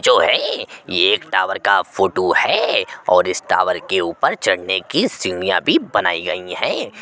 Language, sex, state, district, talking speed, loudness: Hindi, male, Uttar Pradesh, Jyotiba Phule Nagar, 170 wpm, -17 LUFS